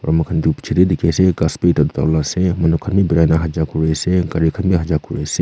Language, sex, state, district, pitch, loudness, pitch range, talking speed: Nagamese, male, Nagaland, Kohima, 80 Hz, -16 LUFS, 80-90 Hz, 245 wpm